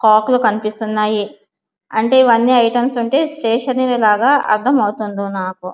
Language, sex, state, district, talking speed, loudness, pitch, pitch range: Telugu, female, Andhra Pradesh, Visakhapatnam, 115 wpm, -15 LUFS, 225 Hz, 215-255 Hz